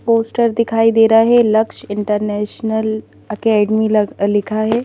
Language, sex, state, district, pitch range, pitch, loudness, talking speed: Hindi, female, Madhya Pradesh, Bhopal, 210-225 Hz, 220 Hz, -15 LUFS, 135 wpm